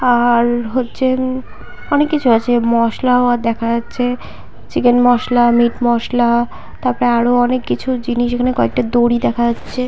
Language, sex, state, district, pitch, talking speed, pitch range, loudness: Bengali, female, West Bengal, Purulia, 240 Hz, 145 wpm, 235-250 Hz, -15 LUFS